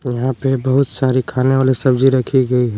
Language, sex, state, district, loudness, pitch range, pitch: Hindi, male, Jharkhand, Palamu, -15 LUFS, 125-135 Hz, 130 Hz